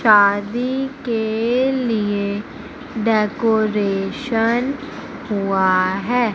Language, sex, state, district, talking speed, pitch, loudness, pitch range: Hindi, female, Madhya Pradesh, Umaria, 55 wpm, 225 Hz, -19 LUFS, 205-245 Hz